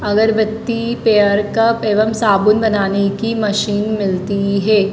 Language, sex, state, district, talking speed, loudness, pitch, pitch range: Hindi, female, Madhya Pradesh, Dhar, 120 wpm, -15 LUFS, 210 Hz, 200-220 Hz